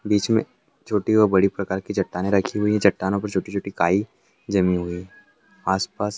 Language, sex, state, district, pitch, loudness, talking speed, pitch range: Hindi, male, Andhra Pradesh, Anantapur, 100 Hz, -22 LUFS, 205 wpm, 95-105 Hz